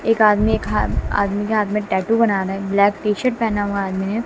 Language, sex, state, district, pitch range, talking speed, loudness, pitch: Hindi, female, Bihar, West Champaran, 200-220 Hz, 240 wpm, -19 LUFS, 205 Hz